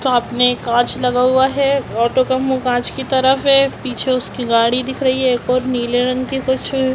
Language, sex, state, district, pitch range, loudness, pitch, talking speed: Hindi, female, Bihar, Muzaffarpur, 245-265 Hz, -16 LUFS, 255 Hz, 215 wpm